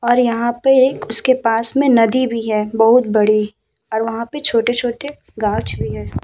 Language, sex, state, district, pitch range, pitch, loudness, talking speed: Hindi, female, Uttar Pradesh, Muzaffarnagar, 215-250 Hz, 230 Hz, -16 LUFS, 185 wpm